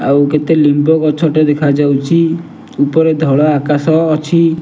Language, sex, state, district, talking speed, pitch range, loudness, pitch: Odia, male, Odisha, Nuapada, 115 wpm, 145-160 Hz, -12 LUFS, 155 Hz